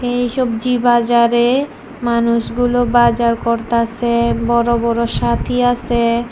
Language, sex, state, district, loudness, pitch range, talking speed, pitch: Bengali, female, Tripura, West Tripura, -15 LUFS, 235-245 Hz, 95 wpm, 235 Hz